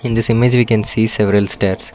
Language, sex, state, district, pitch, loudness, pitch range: English, male, Karnataka, Bangalore, 110 Hz, -14 LUFS, 100-115 Hz